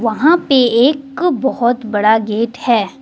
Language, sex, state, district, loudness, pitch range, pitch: Hindi, female, Jharkhand, Deoghar, -14 LUFS, 225-275 Hz, 245 Hz